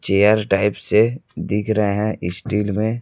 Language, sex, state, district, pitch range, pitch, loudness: Hindi, male, Chhattisgarh, Raipur, 100-110 Hz, 105 Hz, -19 LUFS